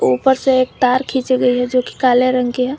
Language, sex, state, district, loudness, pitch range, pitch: Hindi, female, Jharkhand, Garhwa, -15 LUFS, 250-260 Hz, 255 Hz